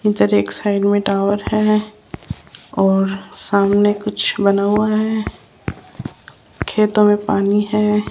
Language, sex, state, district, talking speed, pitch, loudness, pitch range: Hindi, female, Rajasthan, Jaipur, 120 wpm, 205 Hz, -16 LUFS, 200-210 Hz